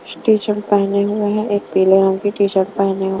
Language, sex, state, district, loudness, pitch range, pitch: Hindi, female, Maharashtra, Mumbai Suburban, -16 LUFS, 195-205 Hz, 200 Hz